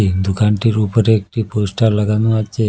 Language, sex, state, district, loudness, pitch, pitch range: Bengali, male, Assam, Hailakandi, -16 LUFS, 105 Hz, 105-110 Hz